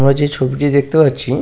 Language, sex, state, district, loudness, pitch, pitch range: Bengali, male, West Bengal, Paschim Medinipur, -14 LUFS, 140 Hz, 135-145 Hz